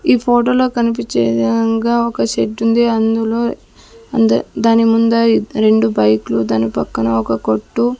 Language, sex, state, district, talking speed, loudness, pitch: Telugu, female, Andhra Pradesh, Sri Satya Sai, 150 wpm, -15 LUFS, 225 Hz